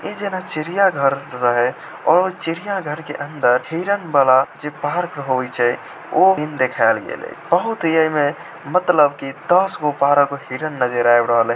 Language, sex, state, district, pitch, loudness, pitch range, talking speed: Maithili, male, Bihar, Samastipur, 145 Hz, -18 LUFS, 130-175 Hz, 155 wpm